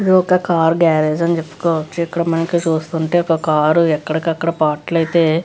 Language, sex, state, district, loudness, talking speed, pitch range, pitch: Telugu, female, Andhra Pradesh, Visakhapatnam, -16 LUFS, 175 wpm, 160-170 Hz, 165 Hz